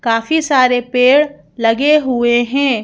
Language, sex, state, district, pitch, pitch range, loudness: Hindi, female, Madhya Pradesh, Bhopal, 255 Hz, 240-285 Hz, -13 LUFS